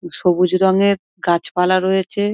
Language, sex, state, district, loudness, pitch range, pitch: Bengali, female, West Bengal, Dakshin Dinajpur, -17 LUFS, 180-200 Hz, 190 Hz